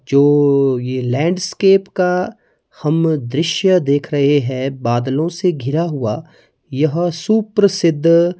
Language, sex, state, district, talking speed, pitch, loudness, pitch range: Hindi, male, Himachal Pradesh, Shimla, 105 wpm, 160 Hz, -16 LUFS, 140-180 Hz